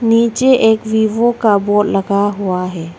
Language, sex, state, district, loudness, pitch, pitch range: Hindi, female, Arunachal Pradesh, Longding, -14 LUFS, 215 Hz, 200-230 Hz